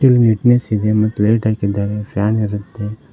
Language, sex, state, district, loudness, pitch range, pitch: Kannada, male, Karnataka, Koppal, -16 LUFS, 105-110 Hz, 105 Hz